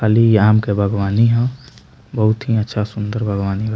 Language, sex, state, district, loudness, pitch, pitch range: Bhojpuri, male, Bihar, Muzaffarpur, -17 LUFS, 110 Hz, 105-115 Hz